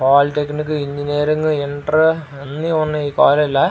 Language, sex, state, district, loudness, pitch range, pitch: Telugu, male, Andhra Pradesh, Srikakulam, -17 LUFS, 145-155 Hz, 150 Hz